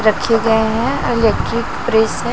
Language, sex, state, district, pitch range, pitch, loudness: Hindi, female, Chhattisgarh, Raipur, 220-235 Hz, 225 Hz, -16 LUFS